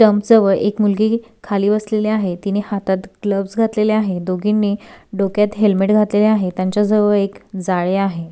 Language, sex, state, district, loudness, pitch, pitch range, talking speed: Marathi, female, Maharashtra, Sindhudurg, -17 LUFS, 205 Hz, 195-215 Hz, 150 wpm